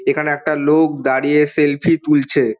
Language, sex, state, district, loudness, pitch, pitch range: Bengali, male, West Bengal, Dakshin Dinajpur, -16 LUFS, 150 Hz, 145-155 Hz